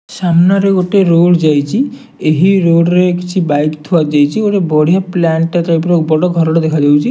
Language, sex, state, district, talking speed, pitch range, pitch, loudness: Odia, male, Odisha, Nuapada, 170 wpm, 160-185 Hz, 175 Hz, -11 LUFS